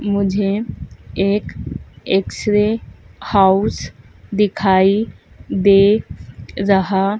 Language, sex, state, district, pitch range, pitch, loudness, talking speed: Hindi, female, Madhya Pradesh, Dhar, 195-210 Hz, 200 Hz, -17 LUFS, 65 wpm